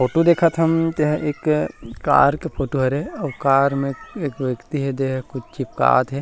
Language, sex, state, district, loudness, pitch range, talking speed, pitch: Chhattisgarhi, male, Chhattisgarh, Rajnandgaon, -20 LUFS, 135-155 Hz, 185 wpm, 140 Hz